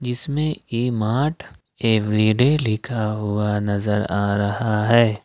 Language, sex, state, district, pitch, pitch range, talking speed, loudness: Hindi, male, Jharkhand, Ranchi, 110 Hz, 105-125 Hz, 115 wpm, -21 LUFS